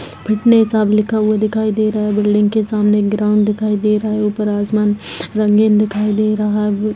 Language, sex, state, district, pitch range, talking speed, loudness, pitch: Hindi, female, Chhattisgarh, Kabirdham, 210-215 Hz, 200 wpm, -15 LUFS, 210 Hz